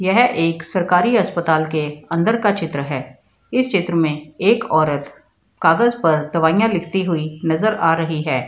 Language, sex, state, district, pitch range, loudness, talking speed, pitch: Hindi, female, Bihar, Madhepura, 155-190 Hz, -18 LUFS, 165 wpm, 165 Hz